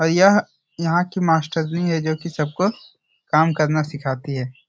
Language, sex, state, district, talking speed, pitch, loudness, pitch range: Hindi, male, Bihar, Jahanabad, 165 wpm, 160 Hz, -20 LUFS, 150-170 Hz